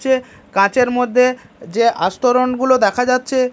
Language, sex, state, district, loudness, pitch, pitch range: Bengali, male, Odisha, Malkangiri, -16 LUFS, 250 Hz, 235-255 Hz